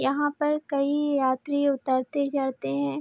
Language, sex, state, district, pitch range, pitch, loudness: Hindi, female, Bihar, Araria, 260-290 Hz, 280 Hz, -26 LUFS